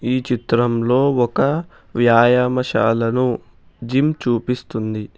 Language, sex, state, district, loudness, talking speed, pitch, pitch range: Telugu, male, Telangana, Hyderabad, -18 LUFS, 70 wpm, 125 Hz, 115-125 Hz